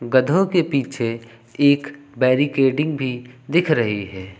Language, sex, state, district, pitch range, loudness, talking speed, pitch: Hindi, male, Uttar Pradesh, Lucknow, 120-145 Hz, -20 LUFS, 120 wpm, 130 Hz